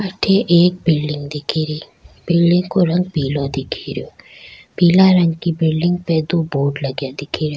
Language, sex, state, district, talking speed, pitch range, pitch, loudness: Rajasthani, female, Rajasthan, Churu, 165 wpm, 150-175 Hz, 165 Hz, -17 LUFS